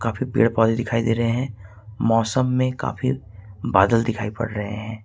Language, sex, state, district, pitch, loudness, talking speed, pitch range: Hindi, male, Jharkhand, Ranchi, 115 Hz, -22 LUFS, 180 wpm, 105-120 Hz